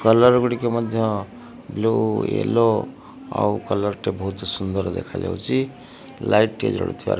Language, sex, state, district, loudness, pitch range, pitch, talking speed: Odia, male, Odisha, Malkangiri, -22 LUFS, 100-125 Hz, 110 Hz, 125 wpm